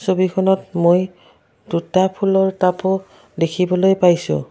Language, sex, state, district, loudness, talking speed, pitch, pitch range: Assamese, female, Assam, Kamrup Metropolitan, -17 LUFS, 95 wpm, 185 Hz, 175-190 Hz